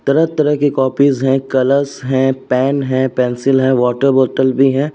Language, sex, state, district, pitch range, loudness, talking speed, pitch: Hindi, male, Uttar Pradesh, Jyotiba Phule Nagar, 130-140 Hz, -14 LUFS, 170 wpm, 135 Hz